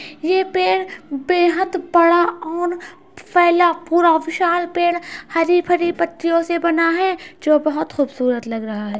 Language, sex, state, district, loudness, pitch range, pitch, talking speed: Hindi, female, Uttar Pradesh, Budaun, -18 LUFS, 325-355 Hz, 345 Hz, 140 wpm